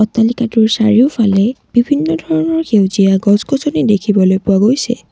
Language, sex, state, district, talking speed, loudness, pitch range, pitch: Assamese, female, Assam, Sonitpur, 115 wpm, -13 LUFS, 205-275 Hz, 225 Hz